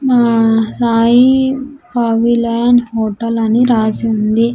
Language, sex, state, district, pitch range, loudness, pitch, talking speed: Telugu, female, Andhra Pradesh, Sri Satya Sai, 225-245 Hz, -13 LUFS, 235 Hz, 90 wpm